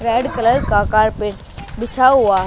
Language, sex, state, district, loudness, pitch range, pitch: Hindi, male, Haryana, Charkhi Dadri, -15 LUFS, 205-240 Hz, 220 Hz